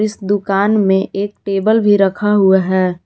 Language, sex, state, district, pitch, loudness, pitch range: Hindi, female, Jharkhand, Garhwa, 200 Hz, -14 LUFS, 190-205 Hz